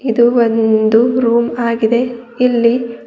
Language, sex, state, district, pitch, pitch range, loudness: Kannada, female, Karnataka, Bidar, 235 Hz, 230-240 Hz, -13 LUFS